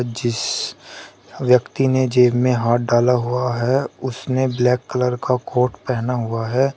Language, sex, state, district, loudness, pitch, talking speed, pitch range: Hindi, male, Uttar Pradesh, Shamli, -19 LUFS, 125 Hz, 150 wpm, 120-130 Hz